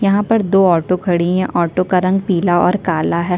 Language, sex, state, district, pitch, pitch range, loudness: Hindi, female, Chhattisgarh, Sukma, 185 Hz, 175-195 Hz, -15 LUFS